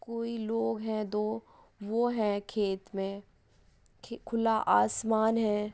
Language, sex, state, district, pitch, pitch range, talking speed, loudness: Hindi, female, Uttar Pradesh, Jyotiba Phule Nagar, 220 Hz, 205-225 Hz, 115 wpm, -31 LUFS